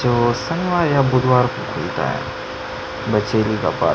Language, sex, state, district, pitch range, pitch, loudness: Hindi, male, Chhattisgarh, Sukma, 110-140 Hz, 125 Hz, -19 LUFS